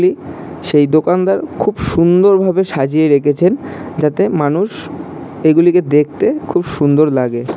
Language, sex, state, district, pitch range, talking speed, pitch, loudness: Bengali, male, West Bengal, Jalpaiguri, 145-185 Hz, 110 wpm, 160 Hz, -13 LUFS